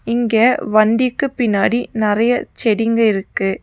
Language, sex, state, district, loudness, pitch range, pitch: Tamil, female, Tamil Nadu, Nilgiris, -16 LUFS, 215-240 Hz, 225 Hz